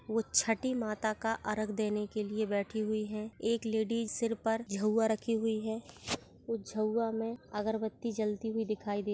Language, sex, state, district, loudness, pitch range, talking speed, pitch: Hindi, female, Bihar, Sitamarhi, -34 LUFS, 215-225 Hz, 175 wpm, 220 Hz